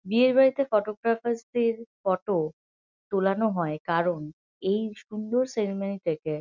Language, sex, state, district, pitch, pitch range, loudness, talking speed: Bengali, female, West Bengal, North 24 Parganas, 200 Hz, 170-230 Hz, -27 LUFS, 120 wpm